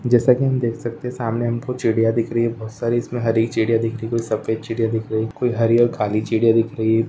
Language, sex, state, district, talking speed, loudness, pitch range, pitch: Hindi, male, Maharashtra, Solapur, 260 wpm, -20 LUFS, 115-120 Hz, 115 Hz